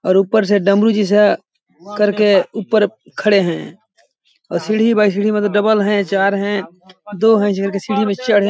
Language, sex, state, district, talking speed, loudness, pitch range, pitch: Hindi, male, Chhattisgarh, Balrampur, 185 wpm, -15 LUFS, 195-210 Hz, 205 Hz